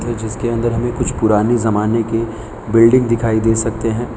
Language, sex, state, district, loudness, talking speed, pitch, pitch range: Hindi, male, Gujarat, Valsad, -16 LUFS, 175 wpm, 115 Hz, 110-120 Hz